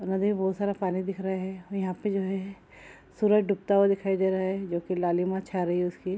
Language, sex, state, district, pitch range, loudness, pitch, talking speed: Hindi, female, Bihar, Saharsa, 185-195 Hz, -28 LUFS, 190 Hz, 270 wpm